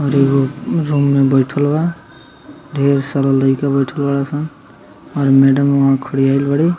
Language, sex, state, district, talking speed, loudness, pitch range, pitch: Bhojpuri, male, Bihar, Muzaffarpur, 150 wpm, -15 LUFS, 135-145 Hz, 140 Hz